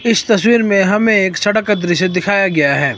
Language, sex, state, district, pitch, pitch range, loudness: Hindi, male, Himachal Pradesh, Shimla, 200 Hz, 180-215 Hz, -13 LUFS